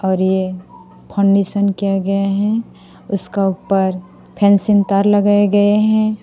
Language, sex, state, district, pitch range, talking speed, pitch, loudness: Hindi, female, Assam, Sonitpur, 195-205 Hz, 115 wpm, 200 Hz, -15 LUFS